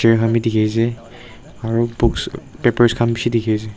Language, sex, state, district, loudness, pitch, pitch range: Nagamese, male, Nagaland, Dimapur, -18 LUFS, 115 Hz, 115-120 Hz